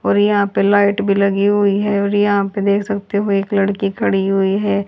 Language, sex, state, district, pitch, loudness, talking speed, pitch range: Hindi, female, Haryana, Charkhi Dadri, 200 Hz, -16 LUFS, 235 wpm, 195-205 Hz